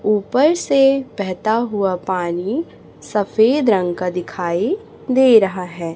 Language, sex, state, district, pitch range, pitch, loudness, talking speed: Hindi, female, Chhattisgarh, Raipur, 180-260 Hz, 210 Hz, -18 LUFS, 120 wpm